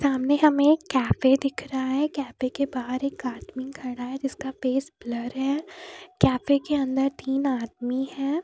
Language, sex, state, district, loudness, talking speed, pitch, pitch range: Hindi, female, Jharkhand, Deoghar, -25 LUFS, 170 wpm, 270 Hz, 260-280 Hz